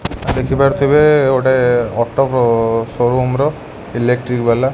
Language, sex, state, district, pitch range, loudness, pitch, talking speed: Odia, male, Odisha, Khordha, 120-135 Hz, -14 LUFS, 125 Hz, 115 wpm